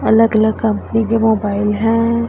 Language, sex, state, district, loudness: Hindi, male, Punjab, Pathankot, -15 LUFS